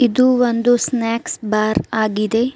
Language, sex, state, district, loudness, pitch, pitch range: Kannada, female, Karnataka, Bidar, -17 LUFS, 230 Hz, 220-245 Hz